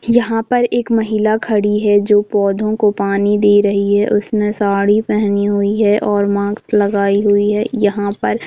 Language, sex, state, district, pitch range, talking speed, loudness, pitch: Hindi, female, Jharkhand, Jamtara, 205-215 Hz, 175 wpm, -14 LUFS, 205 Hz